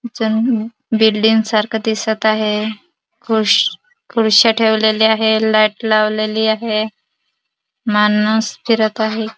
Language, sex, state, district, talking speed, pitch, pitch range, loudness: Marathi, female, Maharashtra, Dhule, 90 wpm, 220 Hz, 215-225 Hz, -15 LUFS